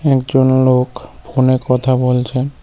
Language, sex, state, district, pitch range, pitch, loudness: Bengali, male, West Bengal, Cooch Behar, 125-135 Hz, 130 Hz, -14 LUFS